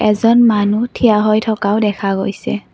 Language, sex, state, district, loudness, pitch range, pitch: Assamese, female, Assam, Kamrup Metropolitan, -14 LUFS, 205-225 Hz, 215 Hz